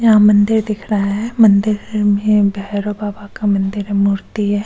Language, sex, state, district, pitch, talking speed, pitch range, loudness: Hindi, female, Goa, North and South Goa, 205 Hz, 180 wpm, 200-215 Hz, -15 LUFS